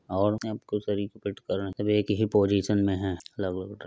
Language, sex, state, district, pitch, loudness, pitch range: Hindi, male, Uttar Pradesh, Budaun, 100 Hz, -28 LUFS, 95-105 Hz